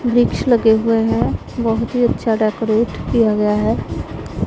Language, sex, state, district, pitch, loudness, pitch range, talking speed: Hindi, female, Punjab, Pathankot, 225 Hz, -17 LUFS, 220-240 Hz, 145 wpm